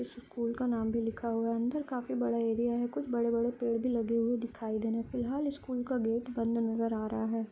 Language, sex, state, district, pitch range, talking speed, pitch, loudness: Hindi, female, Bihar, Gopalganj, 230-245 Hz, 240 wpm, 235 Hz, -33 LUFS